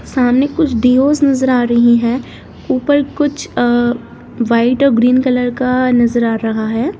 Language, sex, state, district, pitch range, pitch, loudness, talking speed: Hindi, female, Bihar, Samastipur, 240-270 Hz, 250 Hz, -13 LUFS, 165 wpm